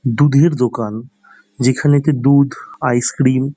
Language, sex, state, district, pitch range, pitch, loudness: Bengali, male, West Bengal, Dakshin Dinajpur, 125-145 Hz, 130 Hz, -15 LUFS